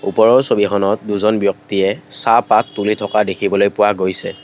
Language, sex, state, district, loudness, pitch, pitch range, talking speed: Assamese, male, Assam, Kamrup Metropolitan, -15 LUFS, 100 Hz, 100-105 Hz, 150 wpm